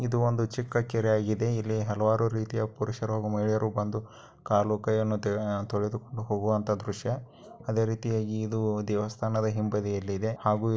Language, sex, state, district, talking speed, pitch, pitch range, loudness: Kannada, male, Karnataka, Dakshina Kannada, 130 wpm, 110 Hz, 105-115 Hz, -29 LUFS